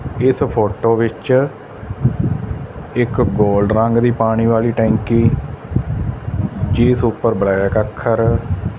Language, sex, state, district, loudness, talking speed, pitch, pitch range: Punjabi, male, Punjab, Fazilka, -16 LUFS, 95 wpm, 115 Hz, 110-125 Hz